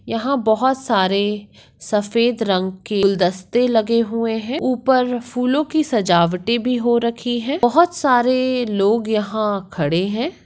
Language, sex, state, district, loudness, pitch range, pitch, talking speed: Hindi, female, Maharashtra, Nagpur, -18 LUFS, 205-250 Hz, 230 Hz, 145 wpm